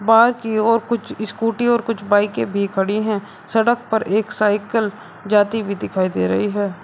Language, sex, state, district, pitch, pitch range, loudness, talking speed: Hindi, male, Uttar Pradesh, Shamli, 215 Hz, 200-225 Hz, -19 LUFS, 175 wpm